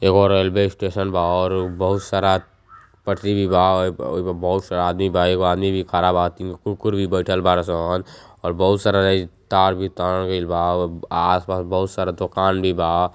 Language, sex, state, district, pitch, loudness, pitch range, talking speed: Bhojpuri, male, Uttar Pradesh, Gorakhpur, 95 Hz, -20 LUFS, 90-95 Hz, 205 wpm